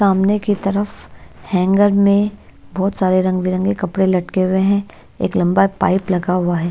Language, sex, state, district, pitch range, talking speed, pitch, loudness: Hindi, female, Bihar, Patna, 185-200 Hz, 170 wpm, 190 Hz, -17 LUFS